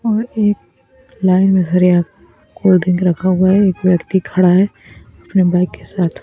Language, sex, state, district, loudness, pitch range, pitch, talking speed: Hindi, male, Bihar, Kaimur, -14 LUFS, 180-190 Hz, 185 Hz, 155 wpm